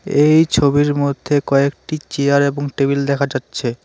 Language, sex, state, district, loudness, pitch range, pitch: Bengali, male, West Bengal, Alipurduar, -16 LUFS, 140-145 Hz, 140 Hz